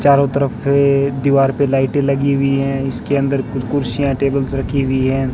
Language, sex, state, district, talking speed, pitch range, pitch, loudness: Hindi, male, Rajasthan, Bikaner, 190 wpm, 135-140 Hz, 140 Hz, -16 LUFS